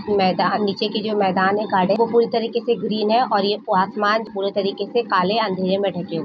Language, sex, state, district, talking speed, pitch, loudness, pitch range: Hindi, female, Jharkhand, Jamtara, 240 wpm, 205 Hz, -20 LUFS, 195-220 Hz